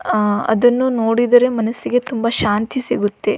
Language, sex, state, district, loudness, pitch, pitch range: Kannada, female, Karnataka, Belgaum, -16 LUFS, 235 Hz, 220-250 Hz